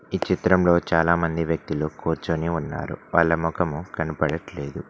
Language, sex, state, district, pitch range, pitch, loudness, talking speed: Telugu, male, Telangana, Mahabubabad, 80-85 Hz, 80 Hz, -23 LUFS, 120 wpm